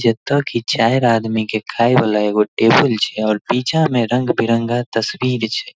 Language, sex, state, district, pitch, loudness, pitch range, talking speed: Maithili, male, Bihar, Darbhanga, 115 Hz, -16 LUFS, 110-125 Hz, 165 wpm